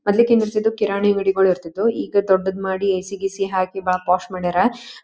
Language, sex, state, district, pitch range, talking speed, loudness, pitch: Kannada, female, Karnataka, Dharwad, 185-210 Hz, 165 wpm, -20 LUFS, 195 Hz